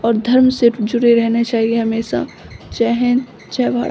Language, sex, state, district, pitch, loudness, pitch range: Hindi, female, Bihar, Samastipur, 230 Hz, -16 LUFS, 225-240 Hz